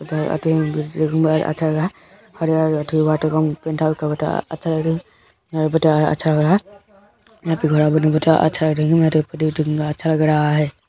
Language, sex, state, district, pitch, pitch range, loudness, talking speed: Maithili, male, Bihar, Kishanganj, 155 Hz, 155-160 Hz, -18 LUFS, 70 wpm